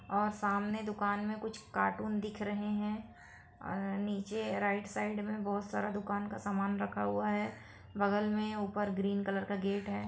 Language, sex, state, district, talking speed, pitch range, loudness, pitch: Hindi, female, Bihar, Saran, 180 wpm, 195-210 Hz, -36 LUFS, 205 Hz